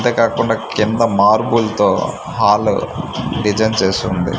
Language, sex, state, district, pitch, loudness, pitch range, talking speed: Telugu, male, Andhra Pradesh, Manyam, 110 Hz, -16 LUFS, 100-115 Hz, 95 wpm